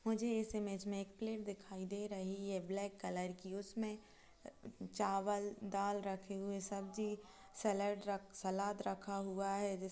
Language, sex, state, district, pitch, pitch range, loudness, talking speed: Hindi, female, Uttar Pradesh, Jalaun, 200 Hz, 195-205 Hz, -43 LUFS, 165 wpm